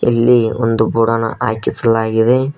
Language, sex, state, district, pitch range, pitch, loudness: Kannada, male, Karnataka, Koppal, 115-120 Hz, 115 Hz, -14 LUFS